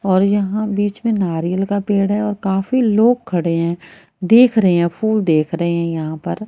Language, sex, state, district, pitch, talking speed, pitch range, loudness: Hindi, female, Haryana, Rohtak, 195 Hz, 205 wpm, 170-210 Hz, -17 LUFS